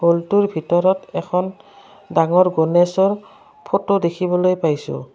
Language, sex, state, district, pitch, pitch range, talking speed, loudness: Assamese, female, Assam, Kamrup Metropolitan, 180 Hz, 170-195 Hz, 95 wpm, -18 LUFS